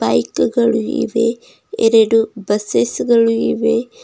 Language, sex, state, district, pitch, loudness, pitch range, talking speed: Kannada, female, Karnataka, Bidar, 225 Hz, -16 LUFS, 210-230 Hz, 75 wpm